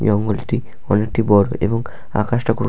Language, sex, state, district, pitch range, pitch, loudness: Bengali, male, West Bengal, Paschim Medinipur, 105-115 Hz, 110 Hz, -19 LUFS